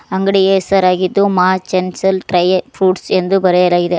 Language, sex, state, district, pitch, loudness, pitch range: Kannada, female, Karnataka, Koppal, 185 Hz, -13 LUFS, 180-190 Hz